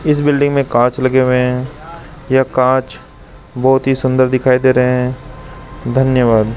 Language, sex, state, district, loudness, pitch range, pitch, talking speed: Hindi, male, Rajasthan, Jaipur, -14 LUFS, 125-130 Hz, 130 Hz, 165 wpm